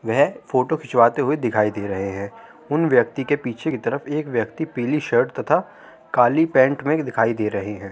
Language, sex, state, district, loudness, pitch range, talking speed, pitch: Hindi, male, Uttar Pradesh, Hamirpur, -21 LUFS, 110-145 Hz, 195 wpm, 125 Hz